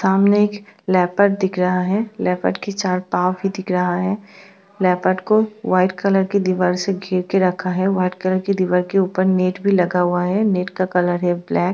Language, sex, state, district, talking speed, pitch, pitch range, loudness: Hindi, female, Bihar, Bhagalpur, 215 wpm, 185 Hz, 180-195 Hz, -19 LUFS